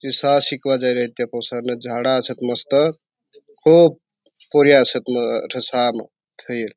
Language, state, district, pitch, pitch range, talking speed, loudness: Bhili, Maharashtra, Dhule, 130 Hz, 120-145 Hz, 140 wpm, -18 LUFS